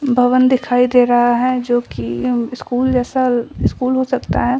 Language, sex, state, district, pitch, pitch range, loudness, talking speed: Hindi, female, Bihar, Samastipur, 250 Hz, 240-255 Hz, -16 LUFS, 180 wpm